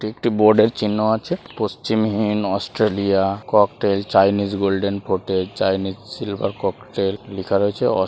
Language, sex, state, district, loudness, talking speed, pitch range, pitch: Bengali, male, West Bengal, Malda, -20 LUFS, 150 wpm, 95-110 Hz, 100 Hz